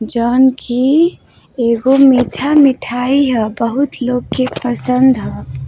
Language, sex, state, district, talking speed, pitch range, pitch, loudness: Bhojpuri, female, Uttar Pradesh, Varanasi, 115 wpm, 240-270 Hz, 255 Hz, -13 LUFS